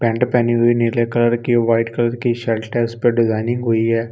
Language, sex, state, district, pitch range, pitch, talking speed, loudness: Hindi, male, Delhi, New Delhi, 115-120 Hz, 120 Hz, 235 wpm, -17 LUFS